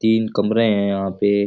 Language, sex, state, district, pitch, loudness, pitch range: Rajasthani, male, Rajasthan, Churu, 100 Hz, -19 LUFS, 100-110 Hz